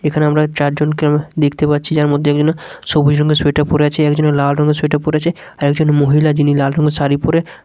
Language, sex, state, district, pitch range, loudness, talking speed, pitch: Bengali, male, Bihar, Katihar, 145-155 Hz, -14 LUFS, 205 wpm, 150 Hz